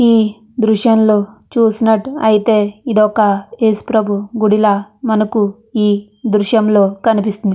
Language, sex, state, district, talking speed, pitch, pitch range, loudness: Telugu, female, Andhra Pradesh, Chittoor, 95 wpm, 215 Hz, 205-225 Hz, -14 LUFS